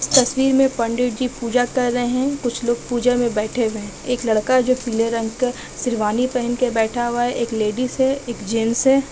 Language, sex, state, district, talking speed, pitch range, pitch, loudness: Hindi, female, Bihar, Kishanganj, 215 wpm, 230-255 Hz, 245 Hz, -20 LUFS